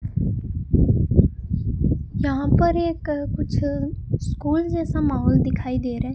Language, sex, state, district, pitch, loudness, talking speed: Hindi, male, Rajasthan, Bikaner, 295 Hz, -22 LUFS, 105 wpm